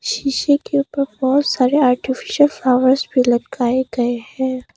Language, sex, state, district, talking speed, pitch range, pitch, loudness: Hindi, female, Arunachal Pradesh, Papum Pare, 140 wpm, 250-280 Hz, 260 Hz, -17 LUFS